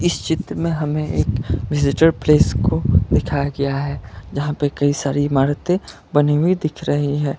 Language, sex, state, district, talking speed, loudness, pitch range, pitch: Hindi, male, Karnataka, Bangalore, 170 wpm, -19 LUFS, 140-150 Hz, 145 Hz